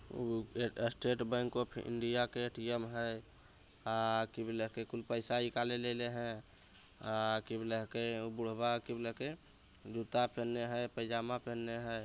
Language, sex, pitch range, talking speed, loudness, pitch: Bhojpuri, male, 115-120 Hz, 95 wpm, -38 LUFS, 115 Hz